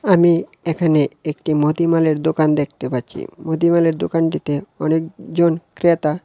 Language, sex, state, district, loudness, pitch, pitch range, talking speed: Bengali, male, Tripura, West Tripura, -18 LUFS, 160 Hz, 150-170 Hz, 105 wpm